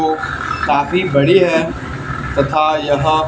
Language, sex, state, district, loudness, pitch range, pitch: Hindi, male, Haryana, Charkhi Dadri, -15 LUFS, 140-160 Hz, 155 Hz